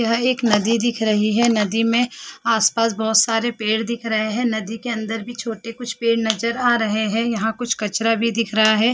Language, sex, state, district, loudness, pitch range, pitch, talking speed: Hindi, female, Chhattisgarh, Rajnandgaon, -19 LUFS, 220-235 Hz, 225 Hz, 220 wpm